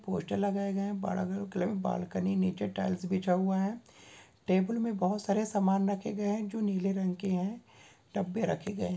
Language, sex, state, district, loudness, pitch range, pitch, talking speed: Hindi, male, Goa, North and South Goa, -32 LUFS, 180-205 Hz, 195 Hz, 180 wpm